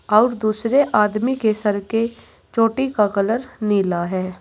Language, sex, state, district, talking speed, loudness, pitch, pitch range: Hindi, female, Uttar Pradesh, Saharanpur, 150 wpm, -19 LUFS, 215 Hz, 205-230 Hz